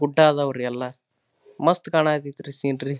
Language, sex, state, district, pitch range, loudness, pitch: Kannada, male, Karnataka, Dharwad, 135-155 Hz, -22 LUFS, 140 Hz